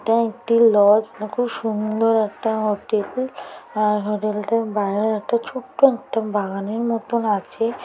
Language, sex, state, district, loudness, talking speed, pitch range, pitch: Bengali, female, West Bengal, Paschim Medinipur, -21 LUFS, 120 wpm, 210-230 Hz, 220 Hz